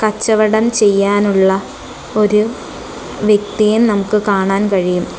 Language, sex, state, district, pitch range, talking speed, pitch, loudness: Malayalam, female, Kerala, Kollam, 200-215 Hz, 80 wpm, 210 Hz, -14 LUFS